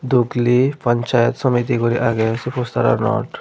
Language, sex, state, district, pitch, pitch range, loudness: Chakma, female, Tripura, West Tripura, 120 Hz, 120-125 Hz, -18 LUFS